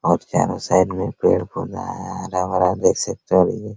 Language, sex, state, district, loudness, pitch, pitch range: Hindi, male, Bihar, Araria, -20 LUFS, 95 Hz, 90-95 Hz